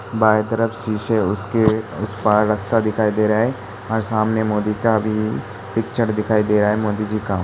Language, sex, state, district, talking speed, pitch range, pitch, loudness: Hindi, male, Uttar Pradesh, Hamirpur, 195 wpm, 105-110 Hz, 110 Hz, -19 LUFS